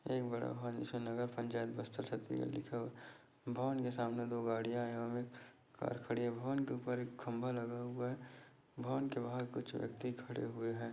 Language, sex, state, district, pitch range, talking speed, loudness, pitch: Hindi, male, Chhattisgarh, Bastar, 115-125 Hz, 205 wpm, -42 LUFS, 120 Hz